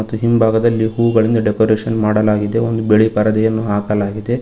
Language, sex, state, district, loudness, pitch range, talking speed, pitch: Kannada, male, Karnataka, Koppal, -15 LUFS, 105-115 Hz, 120 wpm, 110 Hz